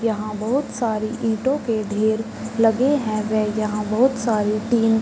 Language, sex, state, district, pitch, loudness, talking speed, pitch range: Hindi, female, Uttar Pradesh, Varanasi, 220 Hz, -21 LUFS, 155 wpm, 215-235 Hz